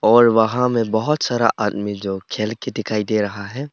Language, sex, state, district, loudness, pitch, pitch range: Hindi, male, Arunachal Pradesh, Papum Pare, -19 LUFS, 110 Hz, 105-120 Hz